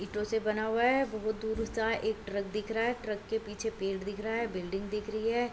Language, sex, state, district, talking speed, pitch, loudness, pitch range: Hindi, female, Bihar, Gopalganj, 260 wpm, 220 Hz, -33 LUFS, 210-225 Hz